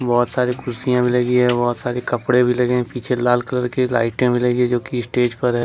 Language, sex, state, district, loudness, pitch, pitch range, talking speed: Hindi, male, Jharkhand, Ranchi, -19 LUFS, 125 Hz, 120-125 Hz, 235 wpm